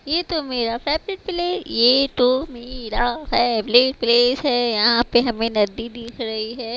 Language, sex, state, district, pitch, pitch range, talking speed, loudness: Hindi, female, Haryana, Rohtak, 245 Hz, 235-275 Hz, 160 wpm, -19 LUFS